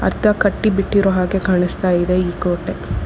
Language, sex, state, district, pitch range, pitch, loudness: Kannada, female, Karnataka, Bangalore, 175-195 Hz, 180 Hz, -17 LUFS